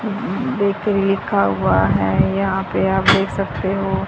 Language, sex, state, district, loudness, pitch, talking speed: Hindi, female, Haryana, Rohtak, -18 LUFS, 195 Hz, 145 wpm